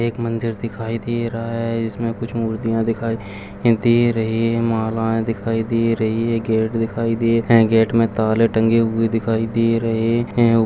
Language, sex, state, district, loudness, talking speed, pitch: Kumaoni, male, Uttarakhand, Uttarkashi, -19 LUFS, 180 wpm, 115 Hz